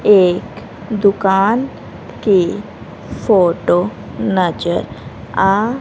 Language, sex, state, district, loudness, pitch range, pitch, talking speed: Hindi, female, Haryana, Rohtak, -15 LUFS, 175-205 Hz, 190 Hz, 60 wpm